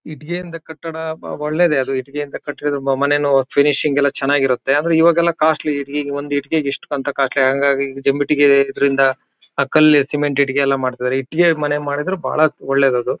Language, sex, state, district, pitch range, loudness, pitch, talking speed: Kannada, male, Karnataka, Shimoga, 135-155 Hz, -17 LUFS, 145 Hz, 175 wpm